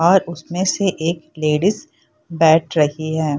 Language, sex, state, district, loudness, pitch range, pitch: Hindi, female, Bihar, Purnia, -18 LUFS, 155-175 Hz, 165 Hz